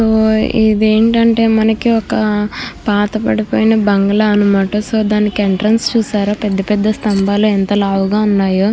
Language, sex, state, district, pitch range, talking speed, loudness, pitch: Telugu, female, Andhra Pradesh, Krishna, 205-220 Hz, 130 wpm, -13 LUFS, 210 Hz